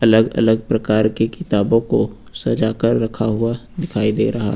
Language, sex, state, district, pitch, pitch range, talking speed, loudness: Hindi, male, Uttar Pradesh, Lucknow, 110 Hz, 110-115 Hz, 160 wpm, -18 LUFS